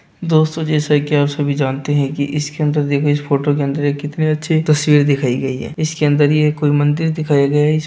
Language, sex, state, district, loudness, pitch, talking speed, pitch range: Hindi, male, Bihar, Samastipur, -16 LUFS, 145 Hz, 235 wpm, 145-155 Hz